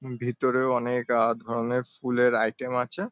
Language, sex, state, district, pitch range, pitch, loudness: Bengali, male, West Bengal, Kolkata, 120-125 Hz, 125 Hz, -26 LUFS